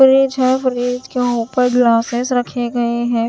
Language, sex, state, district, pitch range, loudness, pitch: Hindi, female, Himachal Pradesh, Shimla, 240-255 Hz, -16 LUFS, 245 Hz